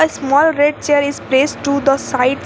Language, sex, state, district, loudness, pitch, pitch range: English, female, Jharkhand, Garhwa, -15 LUFS, 280 Hz, 275-295 Hz